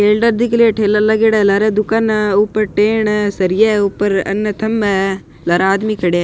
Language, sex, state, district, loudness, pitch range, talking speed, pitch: Rajasthani, male, Rajasthan, Nagaur, -14 LUFS, 200-215 Hz, 220 wpm, 210 Hz